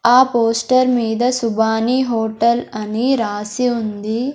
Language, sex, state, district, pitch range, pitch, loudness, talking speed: Telugu, female, Andhra Pradesh, Sri Satya Sai, 220-250 Hz, 235 Hz, -17 LUFS, 110 wpm